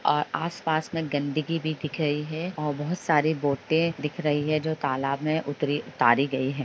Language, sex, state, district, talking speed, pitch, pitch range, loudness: Hindi, female, Jharkhand, Jamtara, 215 wpm, 155 Hz, 145-160 Hz, -26 LUFS